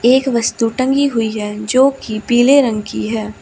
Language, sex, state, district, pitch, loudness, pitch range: Hindi, female, Uttar Pradesh, Shamli, 230 Hz, -15 LUFS, 210-260 Hz